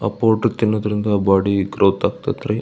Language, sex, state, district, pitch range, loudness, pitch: Kannada, male, Karnataka, Belgaum, 100-110 Hz, -18 LUFS, 105 Hz